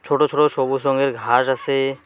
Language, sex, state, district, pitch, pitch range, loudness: Bengali, male, West Bengal, Alipurduar, 135 Hz, 130-140 Hz, -19 LUFS